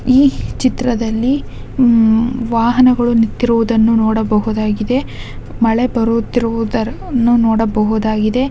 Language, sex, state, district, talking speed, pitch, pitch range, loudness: Kannada, female, Karnataka, Dakshina Kannada, 185 wpm, 230 Hz, 220-245 Hz, -14 LUFS